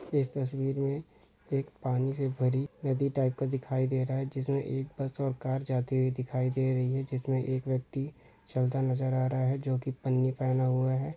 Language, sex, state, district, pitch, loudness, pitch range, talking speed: Hindi, male, Chhattisgarh, Rajnandgaon, 130 Hz, -31 LUFS, 130-135 Hz, 210 wpm